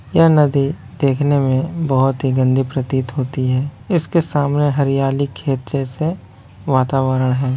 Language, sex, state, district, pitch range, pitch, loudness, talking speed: Hindi, male, Bihar, Kishanganj, 130-145 Hz, 135 Hz, -17 LUFS, 135 wpm